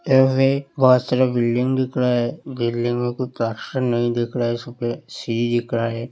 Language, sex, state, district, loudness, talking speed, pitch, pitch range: Hindi, male, Uttar Pradesh, Hamirpur, -21 LUFS, 185 wpm, 120 Hz, 120-130 Hz